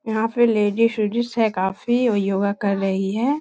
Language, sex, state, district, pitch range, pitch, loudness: Hindi, female, Bihar, Samastipur, 200-235 Hz, 220 Hz, -20 LUFS